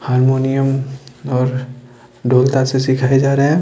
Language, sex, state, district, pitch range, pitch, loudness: Hindi, male, Bihar, Patna, 125-135 Hz, 130 Hz, -16 LUFS